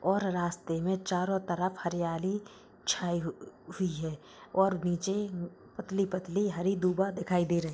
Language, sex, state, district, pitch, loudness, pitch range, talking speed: Hindi, female, Bihar, East Champaran, 185 Hz, -32 LUFS, 175-195 Hz, 140 wpm